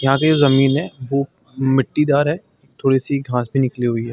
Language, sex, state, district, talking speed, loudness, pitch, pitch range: Hindi, male, Chhattisgarh, Sarguja, 220 wpm, -18 LUFS, 135 Hz, 130-145 Hz